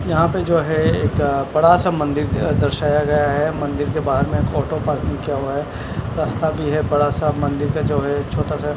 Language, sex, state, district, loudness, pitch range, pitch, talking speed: Hindi, male, Chandigarh, Chandigarh, -19 LUFS, 140-155 Hz, 145 Hz, 220 wpm